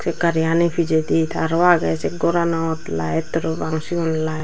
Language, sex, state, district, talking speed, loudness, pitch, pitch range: Chakma, female, Tripura, Dhalai, 135 wpm, -20 LUFS, 165 Hz, 160-170 Hz